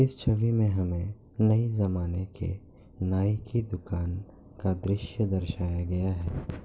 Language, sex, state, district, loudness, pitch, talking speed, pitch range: Hindi, male, Bihar, Kishanganj, -29 LUFS, 95 Hz, 135 wpm, 90-110 Hz